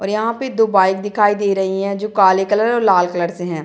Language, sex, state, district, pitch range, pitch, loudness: Hindi, female, Bihar, Muzaffarpur, 190-210 Hz, 200 Hz, -16 LUFS